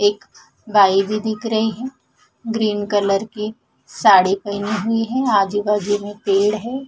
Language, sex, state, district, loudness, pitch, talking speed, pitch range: Hindi, female, Punjab, Fazilka, -18 LUFS, 210 Hz, 155 wpm, 205-225 Hz